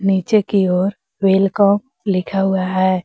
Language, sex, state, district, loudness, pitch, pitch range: Hindi, female, Jharkhand, Garhwa, -17 LUFS, 195 Hz, 185-200 Hz